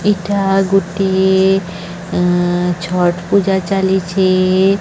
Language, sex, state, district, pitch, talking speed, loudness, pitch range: Odia, male, Odisha, Sambalpur, 190 Hz, 85 wpm, -14 LUFS, 180-195 Hz